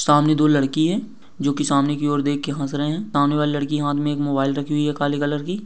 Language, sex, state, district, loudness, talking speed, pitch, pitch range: Hindi, male, Maharashtra, Dhule, -21 LUFS, 285 wpm, 145 Hz, 145-150 Hz